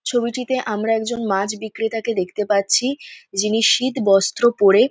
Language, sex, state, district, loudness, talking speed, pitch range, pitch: Bengali, female, West Bengal, North 24 Parganas, -19 LUFS, 120 wpm, 205-240 Hz, 225 Hz